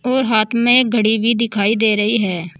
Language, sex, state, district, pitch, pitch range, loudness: Hindi, female, Uttar Pradesh, Saharanpur, 220 Hz, 210-235 Hz, -15 LUFS